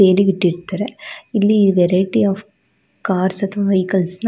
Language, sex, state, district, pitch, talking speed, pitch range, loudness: Kannada, female, Karnataka, Shimoga, 195 Hz, 100 wpm, 185-205 Hz, -17 LUFS